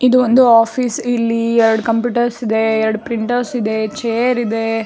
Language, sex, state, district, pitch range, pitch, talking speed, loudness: Kannada, female, Karnataka, Shimoga, 225-245 Hz, 230 Hz, 175 wpm, -15 LUFS